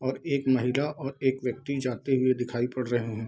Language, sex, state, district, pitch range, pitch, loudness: Hindi, male, Bihar, Darbhanga, 125-135 Hz, 130 Hz, -28 LUFS